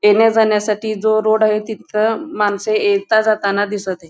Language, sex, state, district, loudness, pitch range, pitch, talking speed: Marathi, female, Goa, North and South Goa, -16 LUFS, 205-220 Hz, 215 Hz, 160 wpm